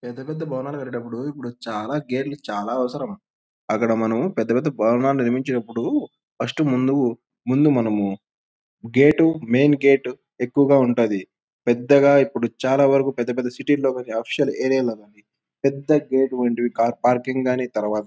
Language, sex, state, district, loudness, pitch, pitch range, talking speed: Telugu, male, Andhra Pradesh, Anantapur, -21 LUFS, 125 Hz, 120-140 Hz, 155 wpm